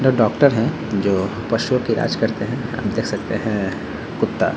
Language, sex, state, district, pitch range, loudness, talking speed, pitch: Hindi, male, Bihar, Vaishali, 100-120 Hz, -20 LUFS, 195 wpm, 110 Hz